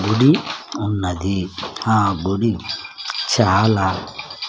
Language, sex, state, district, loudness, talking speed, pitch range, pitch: Telugu, male, Andhra Pradesh, Sri Satya Sai, -19 LUFS, 65 wpm, 95-110 Hz, 100 Hz